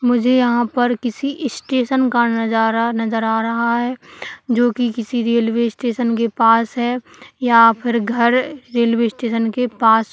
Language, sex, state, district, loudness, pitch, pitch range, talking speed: Hindi, male, Chhattisgarh, Kabirdham, -17 LUFS, 235 Hz, 230-245 Hz, 155 wpm